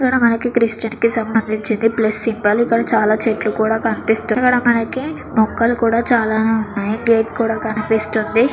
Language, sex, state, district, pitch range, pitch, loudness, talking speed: Telugu, female, Andhra Pradesh, Krishna, 220-235 Hz, 225 Hz, -17 LUFS, 140 wpm